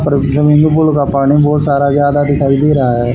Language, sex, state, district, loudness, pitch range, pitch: Hindi, male, Haryana, Charkhi Dadri, -11 LUFS, 140-150 Hz, 145 Hz